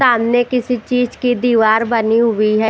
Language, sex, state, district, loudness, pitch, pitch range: Hindi, female, Chhattisgarh, Raipur, -15 LUFS, 240 Hz, 225-245 Hz